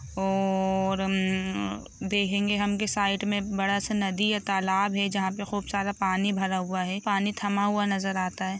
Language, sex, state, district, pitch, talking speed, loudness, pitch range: Hindi, female, Jharkhand, Jamtara, 195 Hz, 190 wpm, -27 LUFS, 190-205 Hz